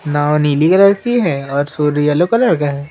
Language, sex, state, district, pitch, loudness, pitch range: Hindi, female, Madhya Pradesh, Umaria, 150 Hz, -14 LUFS, 145-190 Hz